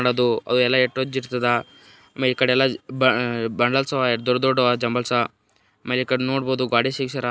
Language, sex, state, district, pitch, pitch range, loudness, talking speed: Kannada, male, Karnataka, Gulbarga, 125 Hz, 120-130 Hz, -21 LUFS, 165 wpm